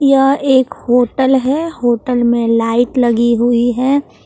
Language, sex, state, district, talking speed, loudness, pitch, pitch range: Hindi, female, Jharkhand, Palamu, 140 wpm, -13 LUFS, 245 Hz, 235-270 Hz